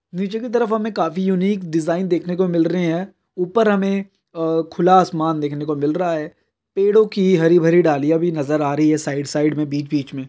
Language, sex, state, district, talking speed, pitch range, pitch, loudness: Hindi, male, Bihar, Kishanganj, 225 wpm, 155-190 Hz, 170 Hz, -18 LUFS